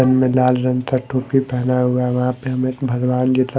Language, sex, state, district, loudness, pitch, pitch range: Hindi, male, Odisha, Malkangiri, -18 LUFS, 130 Hz, 125-130 Hz